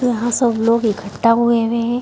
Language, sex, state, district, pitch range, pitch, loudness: Hindi, female, Bihar, Bhagalpur, 230-240 Hz, 235 Hz, -16 LUFS